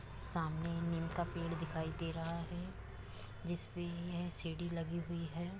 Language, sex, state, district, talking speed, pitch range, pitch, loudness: Hindi, female, Uttar Pradesh, Muzaffarnagar, 160 wpm, 160-170 Hz, 170 Hz, -42 LUFS